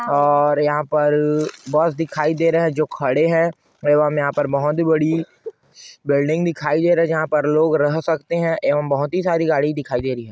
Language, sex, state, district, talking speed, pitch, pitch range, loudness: Hindi, male, Chhattisgarh, Korba, 205 wpm, 155 Hz, 145-165 Hz, -19 LUFS